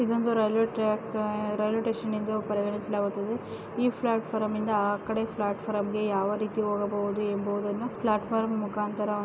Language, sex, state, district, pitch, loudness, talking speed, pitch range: Kannada, female, Karnataka, Raichur, 215 Hz, -29 LUFS, 130 wpm, 205-220 Hz